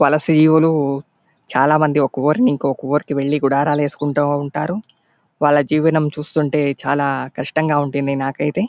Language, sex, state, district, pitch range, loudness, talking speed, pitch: Telugu, male, Andhra Pradesh, Anantapur, 140-155 Hz, -17 LUFS, 130 wpm, 145 Hz